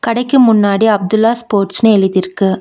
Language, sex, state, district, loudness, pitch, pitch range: Tamil, female, Tamil Nadu, Nilgiris, -12 LUFS, 215 Hz, 195-230 Hz